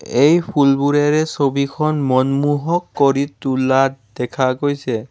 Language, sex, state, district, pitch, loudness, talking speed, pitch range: Assamese, male, Assam, Kamrup Metropolitan, 140 Hz, -17 LUFS, 95 wpm, 130-145 Hz